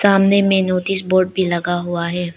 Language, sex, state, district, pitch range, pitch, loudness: Hindi, female, Arunachal Pradesh, Lower Dibang Valley, 175-195 Hz, 185 Hz, -17 LUFS